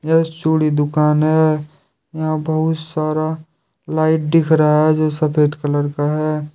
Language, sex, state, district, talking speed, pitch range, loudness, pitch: Hindi, male, Jharkhand, Deoghar, 145 wpm, 150-160 Hz, -17 LUFS, 155 Hz